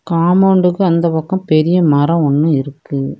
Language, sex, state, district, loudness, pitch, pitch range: Tamil, female, Tamil Nadu, Kanyakumari, -13 LUFS, 165 Hz, 145-180 Hz